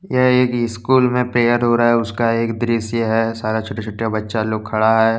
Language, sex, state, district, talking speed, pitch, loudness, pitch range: Hindi, male, Jharkhand, Deoghar, 220 wpm, 115 Hz, -18 LUFS, 110-120 Hz